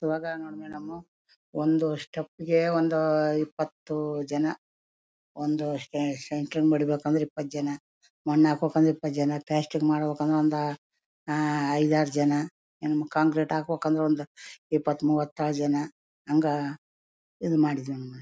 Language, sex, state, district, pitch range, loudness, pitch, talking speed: Kannada, female, Karnataka, Bellary, 145-155 Hz, -27 LUFS, 150 Hz, 120 wpm